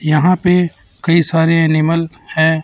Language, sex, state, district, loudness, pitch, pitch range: Hindi, male, Chhattisgarh, Raipur, -14 LUFS, 165 Hz, 160-170 Hz